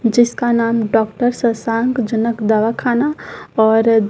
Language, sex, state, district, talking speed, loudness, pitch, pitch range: Hindi, female, Madhya Pradesh, Umaria, 100 wpm, -16 LUFS, 230 Hz, 225-240 Hz